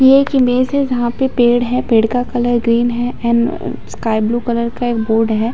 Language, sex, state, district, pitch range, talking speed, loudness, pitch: Hindi, female, Chhattisgarh, Bilaspur, 235-250 Hz, 240 wpm, -15 LUFS, 240 Hz